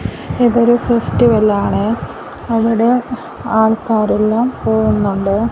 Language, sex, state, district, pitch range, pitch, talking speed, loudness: Malayalam, female, Kerala, Kasaragod, 215-235 Hz, 225 Hz, 65 wpm, -14 LUFS